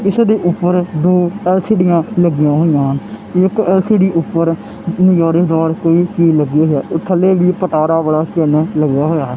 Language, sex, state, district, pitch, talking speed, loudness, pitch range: Punjabi, male, Punjab, Kapurthala, 170 Hz, 140 wpm, -13 LUFS, 155-185 Hz